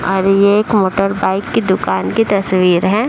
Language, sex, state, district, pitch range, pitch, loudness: Hindi, female, Uttar Pradesh, Deoria, 190-210 Hz, 195 Hz, -14 LUFS